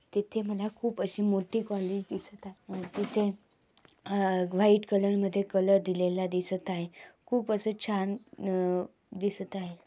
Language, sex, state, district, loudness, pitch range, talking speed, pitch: Marathi, female, Maharashtra, Dhule, -30 LUFS, 185-210 Hz, 140 wpm, 200 Hz